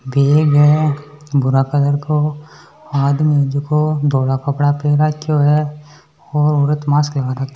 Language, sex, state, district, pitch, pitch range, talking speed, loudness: Marwari, female, Rajasthan, Nagaur, 145 Hz, 140-150 Hz, 125 wpm, -15 LUFS